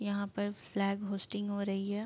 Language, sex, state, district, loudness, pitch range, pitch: Hindi, female, Uttar Pradesh, Jalaun, -36 LUFS, 200-205 Hz, 200 Hz